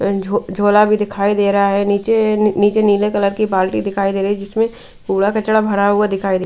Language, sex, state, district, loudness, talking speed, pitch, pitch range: Hindi, female, Delhi, New Delhi, -16 LUFS, 215 wpm, 205 Hz, 200-210 Hz